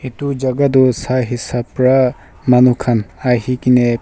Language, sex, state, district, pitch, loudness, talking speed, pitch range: Nagamese, male, Nagaland, Kohima, 125 Hz, -15 LUFS, 135 wpm, 120-130 Hz